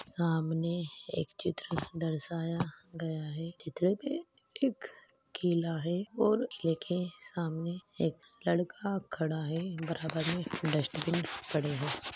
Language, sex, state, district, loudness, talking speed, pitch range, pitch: Hindi, female, Uttar Pradesh, Ghazipur, -34 LUFS, 120 wpm, 160-180 Hz, 165 Hz